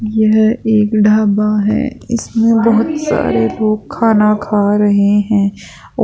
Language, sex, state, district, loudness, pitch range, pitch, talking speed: Hindi, female, Rajasthan, Jaipur, -13 LUFS, 205-225 Hz, 215 Hz, 130 wpm